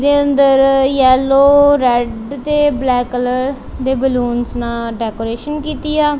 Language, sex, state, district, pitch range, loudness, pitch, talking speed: Punjabi, female, Punjab, Kapurthala, 245-285 Hz, -14 LUFS, 265 Hz, 125 wpm